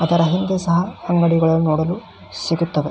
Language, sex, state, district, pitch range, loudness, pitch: Kannada, male, Karnataka, Belgaum, 165-175 Hz, -18 LUFS, 170 Hz